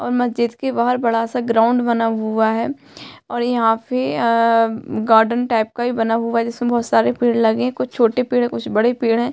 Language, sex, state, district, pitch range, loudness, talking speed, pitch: Hindi, female, Uttarakhand, Tehri Garhwal, 225-245 Hz, -18 LUFS, 225 wpm, 235 Hz